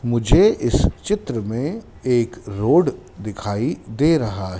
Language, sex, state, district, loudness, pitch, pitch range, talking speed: Hindi, male, Madhya Pradesh, Dhar, -20 LUFS, 115 Hz, 105-135 Hz, 130 wpm